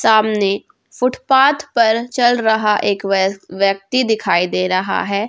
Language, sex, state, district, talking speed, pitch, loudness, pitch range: Hindi, female, Jharkhand, Ranchi, 125 wpm, 215 Hz, -16 LUFS, 195-240 Hz